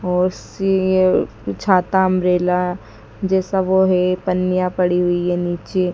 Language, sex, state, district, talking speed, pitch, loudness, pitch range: Hindi, male, Madhya Pradesh, Dhar, 120 wpm, 185 Hz, -18 LUFS, 180-190 Hz